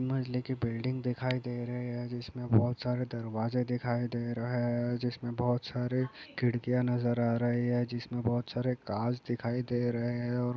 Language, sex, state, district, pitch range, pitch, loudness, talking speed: Hindi, male, Chhattisgarh, Rajnandgaon, 120-125 Hz, 120 Hz, -33 LUFS, 165 wpm